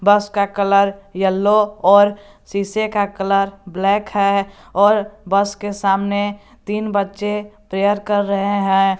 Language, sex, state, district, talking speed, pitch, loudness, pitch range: Hindi, male, Jharkhand, Garhwa, 135 wpm, 200 Hz, -18 LUFS, 195-205 Hz